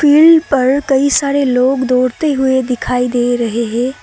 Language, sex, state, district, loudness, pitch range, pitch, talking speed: Hindi, female, Assam, Kamrup Metropolitan, -13 LUFS, 250-280 Hz, 260 Hz, 165 wpm